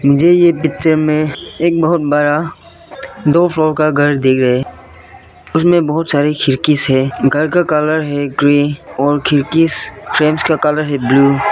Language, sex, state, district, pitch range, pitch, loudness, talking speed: Hindi, male, Arunachal Pradesh, Lower Dibang Valley, 140-160 Hz, 150 Hz, -13 LUFS, 165 wpm